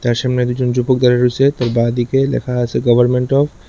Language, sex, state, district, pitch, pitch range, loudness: Bengali, male, Tripura, West Tripura, 125 Hz, 120-130 Hz, -15 LUFS